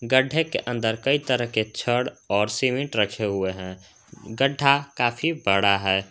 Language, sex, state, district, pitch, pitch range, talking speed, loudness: Hindi, male, Jharkhand, Garhwa, 120 Hz, 100-135 Hz, 155 wpm, -23 LUFS